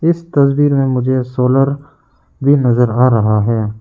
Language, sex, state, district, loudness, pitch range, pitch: Hindi, male, Arunachal Pradesh, Lower Dibang Valley, -13 LUFS, 125-140 Hz, 130 Hz